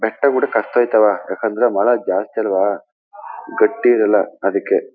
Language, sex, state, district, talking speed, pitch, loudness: Kannada, male, Karnataka, Chamarajanagar, 75 wpm, 145 Hz, -17 LUFS